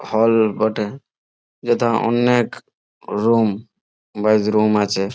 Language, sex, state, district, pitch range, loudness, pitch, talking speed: Bengali, male, West Bengal, Malda, 105-115 Hz, -18 LUFS, 110 Hz, 105 wpm